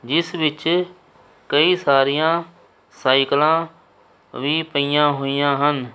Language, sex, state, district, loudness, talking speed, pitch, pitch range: Punjabi, male, Punjab, Kapurthala, -19 LUFS, 90 wpm, 150 Hz, 140-165 Hz